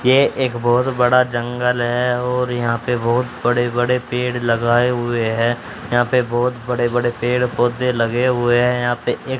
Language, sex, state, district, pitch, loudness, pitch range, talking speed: Hindi, male, Haryana, Charkhi Dadri, 120 Hz, -18 LUFS, 120-125 Hz, 185 wpm